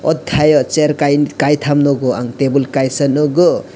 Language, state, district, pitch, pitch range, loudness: Kokborok, Tripura, West Tripura, 145 Hz, 135-150 Hz, -14 LUFS